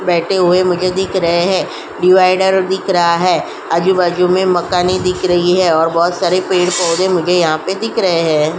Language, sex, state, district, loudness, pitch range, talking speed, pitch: Hindi, female, Uttar Pradesh, Jyotiba Phule Nagar, -13 LUFS, 175-185 Hz, 195 wpm, 180 Hz